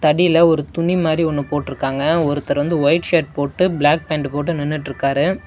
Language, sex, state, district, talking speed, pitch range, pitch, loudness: Tamil, male, Tamil Nadu, Namakkal, 165 wpm, 145-170 Hz, 155 Hz, -18 LUFS